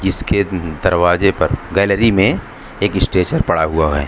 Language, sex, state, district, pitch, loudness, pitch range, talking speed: Hindi, male, Maharashtra, Mumbai Suburban, 95 Hz, -15 LUFS, 80-100 Hz, 145 wpm